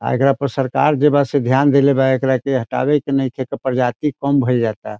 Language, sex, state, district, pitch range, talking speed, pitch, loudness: Bhojpuri, male, Bihar, Saran, 130-140 Hz, 230 wpm, 135 Hz, -17 LUFS